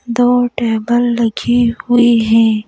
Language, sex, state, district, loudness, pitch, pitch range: Hindi, female, Madhya Pradesh, Bhopal, -13 LUFS, 235 Hz, 225-245 Hz